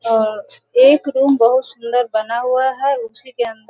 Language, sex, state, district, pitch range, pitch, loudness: Hindi, female, Bihar, Sitamarhi, 230-265 Hz, 245 Hz, -16 LUFS